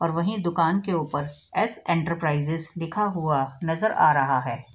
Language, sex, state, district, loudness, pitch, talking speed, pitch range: Hindi, female, Bihar, Sitamarhi, -24 LUFS, 165 Hz, 165 wpm, 145-175 Hz